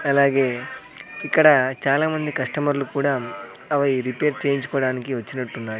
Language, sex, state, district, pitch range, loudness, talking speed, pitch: Telugu, male, Andhra Pradesh, Sri Satya Sai, 130-145 Hz, -21 LUFS, 105 wpm, 135 Hz